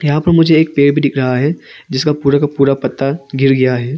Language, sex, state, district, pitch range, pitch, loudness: Hindi, male, Arunachal Pradesh, Papum Pare, 135-150 Hz, 140 Hz, -13 LUFS